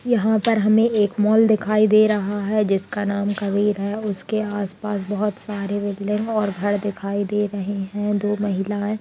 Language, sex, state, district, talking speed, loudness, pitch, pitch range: Hindi, female, Bihar, Saharsa, 180 wpm, -21 LUFS, 205 Hz, 200-215 Hz